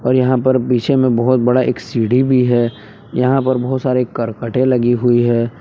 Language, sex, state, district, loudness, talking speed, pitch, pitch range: Hindi, male, Jharkhand, Palamu, -15 LUFS, 205 wpm, 125 Hz, 120-130 Hz